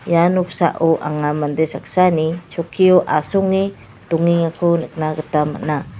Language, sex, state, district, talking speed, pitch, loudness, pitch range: Garo, female, Meghalaya, West Garo Hills, 110 wpm, 165 Hz, -18 LUFS, 155-175 Hz